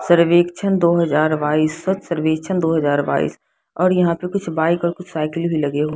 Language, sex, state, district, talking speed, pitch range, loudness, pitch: Hindi, female, Bihar, Patna, 200 wpm, 155-175 Hz, -18 LUFS, 170 Hz